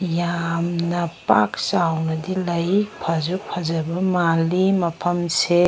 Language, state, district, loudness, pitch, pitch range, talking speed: Manipuri, Manipur, Imphal West, -21 LUFS, 170 Hz, 165-180 Hz, 85 wpm